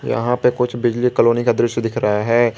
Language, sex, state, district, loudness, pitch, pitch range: Hindi, male, Jharkhand, Garhwa, -17 LUFS, 120 Hz, 115-125 Hz